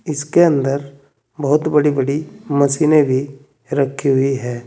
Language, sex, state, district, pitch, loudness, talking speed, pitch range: Hindi, male, Uttar Pradesh, Saharanpur, 140 Hz, -17 LUFS, 130 wpm, 135-150 Hz